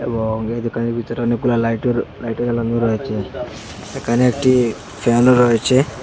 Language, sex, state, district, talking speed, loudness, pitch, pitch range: Bengali, male, Assam, Hailakandi, 130 wpm, -18 LUFS, 115 Hz, 115-120 Hz